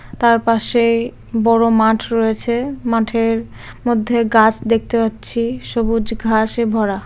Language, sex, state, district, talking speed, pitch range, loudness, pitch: Bengali, female, West Bengal, Dakshin Dinajpur, 110 wpm, 225-235 Hz, -16 LUFS, 230 Hz